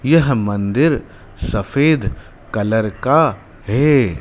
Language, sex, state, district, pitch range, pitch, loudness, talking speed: Hindi, male, Madhya Pradesh, Dhar, 100-140 Hz, 110 Hz, -17 LUFS, 85 wpm